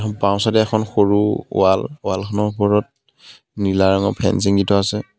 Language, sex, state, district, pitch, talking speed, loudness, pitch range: Assamese, male, Assam, Kamrup Metropolitan, 105 Hz, 140 wpm, -18 LUFS, 100-105 Hz